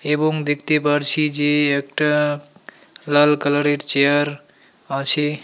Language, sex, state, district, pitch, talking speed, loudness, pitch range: Bengali, male, West Bengal, Alipurduar, 145 Hz, 110 wpm, -16 LUFS, 145-150 Hz